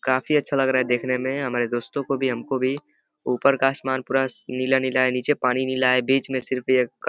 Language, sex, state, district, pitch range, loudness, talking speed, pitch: Hindi, male, Uttar Pradesh, Deoria, 125-135 Hz, -22 LUFS, 235 wpm, 130 Hz